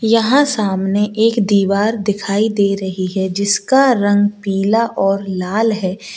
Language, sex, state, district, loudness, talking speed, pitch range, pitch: Hindi, female, Uttar Pradesh, Lalitpur, -15 LUFS, 135 wpm, 195-220 Hz, 205 Hz